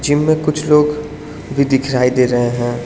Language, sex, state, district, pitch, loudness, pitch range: Hindi, male, Arunachal Pradesh, Lower Dibang Valley, 145 Hz, -15 LUFS, 125-150 Hz